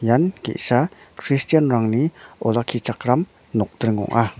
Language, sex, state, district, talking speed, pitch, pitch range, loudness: Garo, male, Meghalaya, North Garo Hills, 80 wpm, 120 Hz, 115-140 Hz, -21 LUFS